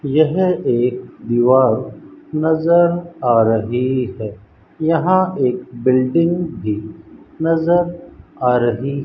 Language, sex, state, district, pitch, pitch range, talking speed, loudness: Hindi, male, Rajasthan, Bikaner, 130 Hz, 120-165 Hz, 100 wpm, -17 LUFS